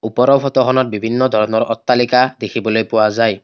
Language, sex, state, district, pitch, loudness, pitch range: Assamese, male, Assam, Kamrup Metropolitan, 115 Hz, -15 LUFS, 110-130 Hz